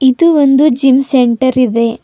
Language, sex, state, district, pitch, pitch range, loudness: Kannada, female, Karnataka, Bidar, 260 Hz, 250-275 Hz, -10 LUFS